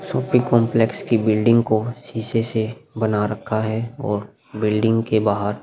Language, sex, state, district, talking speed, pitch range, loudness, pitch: Hindi, male, Bihar, Vaishali, 160 wpm, 110-115 Hz, -20 LUFS, 110 Hz